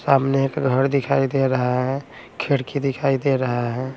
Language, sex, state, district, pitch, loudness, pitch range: Hindi, male, Bihar, Patna, 135 Hz, -21 LUFS, 130-135 Hz